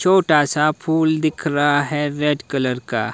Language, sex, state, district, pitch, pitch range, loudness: Hindi, male, Himachal Pradesh, Shimla, 150 Hz, 145-155 Hz, -18 LUFS